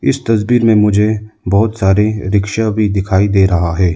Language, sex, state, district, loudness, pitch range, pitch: Hindi, male, Arunachal Pradesh, Lower Dibang Valley, -13 LUFS, 95-110 Hz, 105 Hz